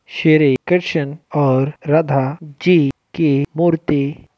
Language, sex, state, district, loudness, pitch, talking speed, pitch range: Hindi, male, Uttar Pradesh, Muzaffarnagar, -17 LUFS, 150 Hz, 95 wpm, 140-165 Hz